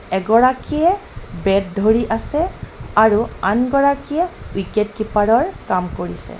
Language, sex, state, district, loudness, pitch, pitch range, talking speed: Assamese, female, Assam, Kamrup Metropolitan, -18 LUFS, 225 Hz, 210-280 Hz, 95 wpm